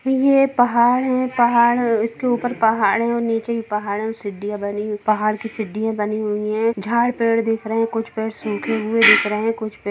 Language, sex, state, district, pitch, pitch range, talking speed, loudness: Hindi, female, Bihar, Gopalganj, 225 Hz, 215-235 Hz, 285 wpm, -19 LUFS